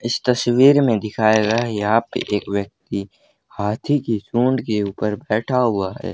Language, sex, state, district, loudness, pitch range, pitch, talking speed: Hindi, male, Haryana, Charkhi Dadri, -19 LUFS, 105-120 Hz, 110 Hz, 175 wpm